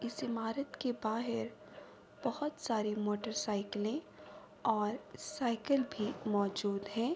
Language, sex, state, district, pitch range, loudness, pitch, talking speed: Urdu, female, Andhra Pradesh, Anantapur, 210-255 Hz, -37 LUFS, 225 Hz, 110 wpm